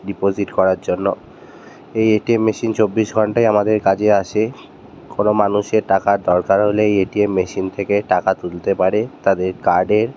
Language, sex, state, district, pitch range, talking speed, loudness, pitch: Bengali, male, West Bengal, North 24 Parganas, 95-110 Hz, 155 wpm, -17 LUFS, 105 Hz